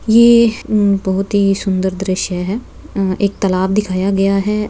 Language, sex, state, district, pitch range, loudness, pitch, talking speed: Hindi, female, Bihar, Begusarai, 190-210 Hz, -15 LUFS, 195 Hz, 165 wpm